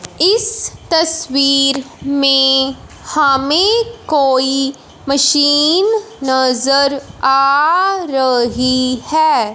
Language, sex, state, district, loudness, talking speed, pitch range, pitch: Hindi, male, Punjab, Fazilka, -13 LUFS, 65 wpm, 270-325 Hz, 275 Hz